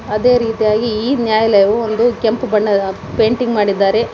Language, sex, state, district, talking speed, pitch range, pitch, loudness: Kannada, female, Karnataka, Koppal, 115 wpm, 210-230 Hz, 220 Hz, -14 LUFS